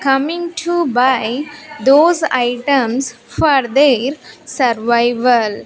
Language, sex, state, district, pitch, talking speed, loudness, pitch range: English, female, Andhra Pradesh, Sri Satya Sai, 265 Hz, 85 wpm, -15 LUFS, 245-295 Hz